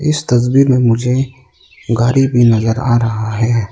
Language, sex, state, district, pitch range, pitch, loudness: Hindi, male, Arunachal Pradesh, Lower Dibang Valley, 115-130 Hz, 120 Hz, -13 LUFS